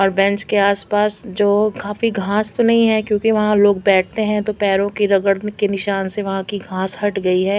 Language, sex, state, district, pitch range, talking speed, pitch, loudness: Hindi, female, Chandigarh, Chandigarh, 195-210 Hz, 245 wpm, 205 Hz, -17 LUFS